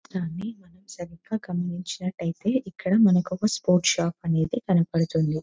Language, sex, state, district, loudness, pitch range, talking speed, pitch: Telugu, female, Telangana, Nalgonda, -25 LUFS, 170-195 Hz, 110 wpm, 180 Hz